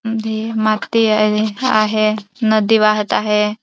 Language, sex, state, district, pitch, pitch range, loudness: Marathi, female, Maharashtra, Dhule, 215 Hz, 215-220 Hz, -16 LUFS